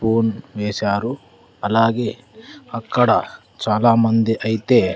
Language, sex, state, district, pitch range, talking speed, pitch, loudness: Telugu, male, Andhra Pradesh, Sri Satya Sai, 110-115 Hz, 70 wpm, 115 Hz, -19 LUFS